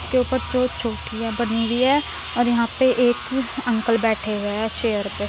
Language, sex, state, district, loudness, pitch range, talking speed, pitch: Hindi, female, Uttar Pradesh, Muzaffarnagar, -22 LUFS, 225-250 Hz, 205 wpm, 235 Hz